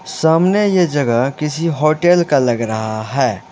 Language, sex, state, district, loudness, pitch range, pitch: Hindi, male, Uttar Pradesh, Lalitpur, -15 LUFS, 120-170 Hz, 150 Hz